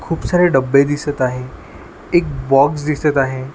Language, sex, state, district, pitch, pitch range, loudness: Marathi, male, Maharashtra, Washim, 140 Hz, 135-155 Hz, -16 LUFS